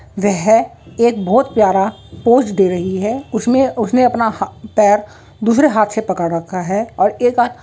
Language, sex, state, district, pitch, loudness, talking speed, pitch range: Hindi, female, Uttar Pradesh, Jalaun, 220 Hz, -15 LUFS, 165 wpm, 195-240 Hz